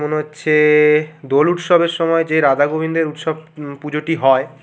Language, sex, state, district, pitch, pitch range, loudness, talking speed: Bengali, male, West Bengal, Kolkata, 150 Hz, 150-160 Hz, -16 LUFS, 170 wpm